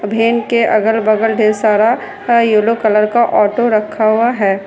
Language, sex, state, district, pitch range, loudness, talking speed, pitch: Hindi, female, Bihar, Kishanganj, 215-230 Hz, -13 LUFS, 155 wpm, 220 Hz